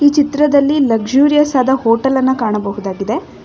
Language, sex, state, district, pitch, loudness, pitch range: Kannada, female, Karnataka, Bangalore, 265 Hz, -14 LUFS, 225-290 Hz